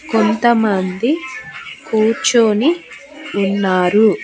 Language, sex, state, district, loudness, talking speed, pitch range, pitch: Telugu, female, Andhra Pradesh, Annamaya, -15 LUFS, 40 wpm, 200-295 Hz, 225 Hz